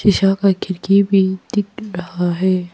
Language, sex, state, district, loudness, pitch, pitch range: Hindi, female, Arunachal Pradesh, Papum Pare, -17 LUFS, 190 Hz, 185-200 Hz